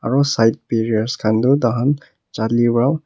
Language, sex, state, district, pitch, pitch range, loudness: Nagamese, male, Nagaland, Kohima, 120 Hz, 115-140 Hz, -18 LUFS